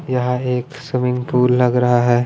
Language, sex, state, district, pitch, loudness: Hindi, male, Punjab, Pathankot, 125 Hz, -17 LUFS